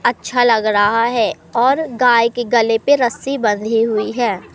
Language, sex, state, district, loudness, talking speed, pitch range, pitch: Hindi, male, Madhya Pradesh, Katni, -15 LUFS, 170 wpm, 225-245 Hz, 235 Hz